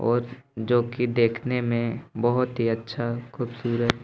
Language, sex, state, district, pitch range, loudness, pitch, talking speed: Hindi, male, Bihar, Gaya, 115-120 Hz, -26 LUFS, 120 Hz, 150 wpm